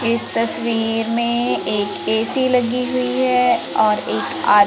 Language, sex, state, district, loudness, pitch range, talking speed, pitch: Hindi, female, Madhya Pradesh, Umaria, -18 LUFS, 225-250 Hz, 140 wpm, 235 Hz